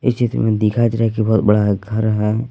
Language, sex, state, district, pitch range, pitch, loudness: Hindi, male, Jharkhand, Palamu, 105-115 Hz, 110 Hz, -17 LUFS